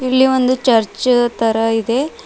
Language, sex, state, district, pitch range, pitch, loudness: Kannada, female, Karnataka, Bidar, 225-260 Hz, 245 Hz, -15 LUFS